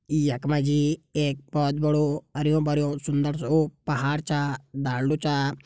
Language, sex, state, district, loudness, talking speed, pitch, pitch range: Garhwali, male, Uttarakhand, Tehri Garhwal, -25 LUFS, 150 wpm, 145 Hz, 140-150 Hz